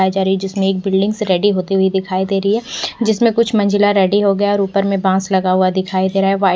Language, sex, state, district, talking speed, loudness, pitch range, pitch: Hindi, female, Bihar, West Champaran, 245 wpm, -15 LUFS, 190-205 Hz, 195 Hz